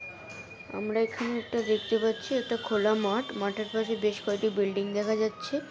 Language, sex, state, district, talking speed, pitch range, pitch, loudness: Bengali, female, West Bengal, North 24 Parganas, 155 wpm, 210-235 Hz, 220 Hz, -29 LUFS